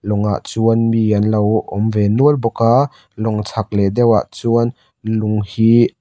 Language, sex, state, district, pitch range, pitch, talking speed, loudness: Mizo, male, Mizoram, Aizawl, 105-115 Hz, 110 Hz, 180 wpm, -16 LUFS